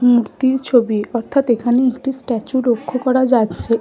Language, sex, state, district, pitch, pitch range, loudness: Bengali, female, West Bengal, Malda, 245 Hz, 235-260 Hz, -17 LUFS